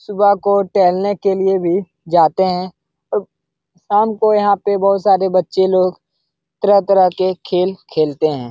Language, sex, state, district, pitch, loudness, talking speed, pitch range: Hindi, male, Bihar, Lakhisarai, 190 Hz, -15 LUFS, 155 wpm, 180-200 Hz